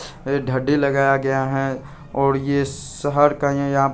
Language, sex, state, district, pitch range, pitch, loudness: Hindi, male, Bihar, Saharsa, 135-145 Hz, 140 Hz, -20 LUFS